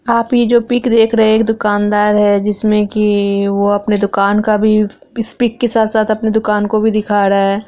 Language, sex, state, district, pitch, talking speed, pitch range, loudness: Hindi, female, Bihar, Araria, 215 Hz, 210 wpm, 205-225 Hz, -13 LUFS